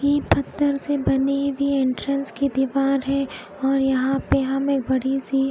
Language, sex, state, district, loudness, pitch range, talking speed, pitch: Hindi, female, Odisha, Khordha, -22 LUFS, 265-280 Hz, 150 wpm, 275 Hz